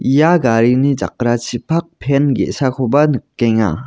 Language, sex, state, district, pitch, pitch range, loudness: Garo, male, Meghalaya, West Garo Hills, 130 Hz, 120-145 Hz, -15 LUFS